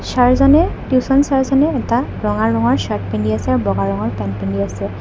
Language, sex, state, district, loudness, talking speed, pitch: Assamese, female, Assam, Kamrup Metropolitan, -16 LUFS, 180 wpm, 210 Hz